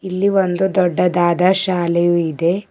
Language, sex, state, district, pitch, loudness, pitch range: Kannada, female, Karnataka, Bidar, 180 Hz, -16 LUFS, 175-190 Hz